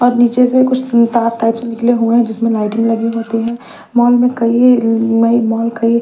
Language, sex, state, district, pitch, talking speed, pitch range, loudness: Hindi, female, Maharashtra, Mumbai Suburban, 230 Hz, 230 wpm, 230-240 Hz, -13 LUFS